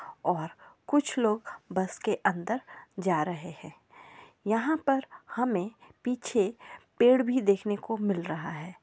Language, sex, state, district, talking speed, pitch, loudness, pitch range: Hindi, female, Uttarakhand, Uttarkashi, 135 wpm, 215 Hz, -29 LUFS, 185-255 Hz